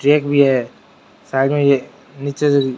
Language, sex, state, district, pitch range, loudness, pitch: Rajasthani, male, Rajasthan, Churu, 135-145 Hz, -17 LUFS, 140 Hz